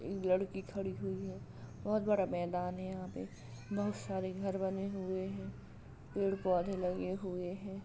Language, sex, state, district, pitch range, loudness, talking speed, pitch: Hindi, female, Uttar Pradesh, Hamirpur, 180-195 Hz, -38 LUFS, 170 wpm, 190 Hz